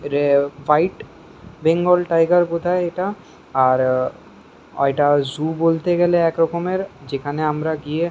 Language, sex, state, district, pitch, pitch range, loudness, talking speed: Bengali, male, West Bengal, Kolkata, 160 Hz, 145-175 Hz, -19 LUFS, 110 wpm